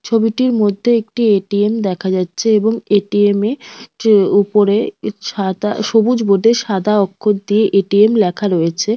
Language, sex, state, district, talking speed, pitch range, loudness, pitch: Bengali, female, West Bengal, North 24 Parganas, 135 wpm, 200-225 Hz, -15 LUFS, 210 Hz